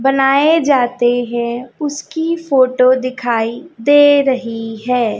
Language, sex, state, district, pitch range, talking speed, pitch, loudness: Hindi, female, Chhattisgarh, Raipur, 240-285 Hz, 105 wpm, 255 Hz, -14 LUFS